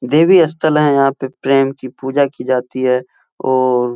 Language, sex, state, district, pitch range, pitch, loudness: Hindi, male, Uttar Pradesh, Etah, 130-145 Hz, 135 Hz, -15 LUFS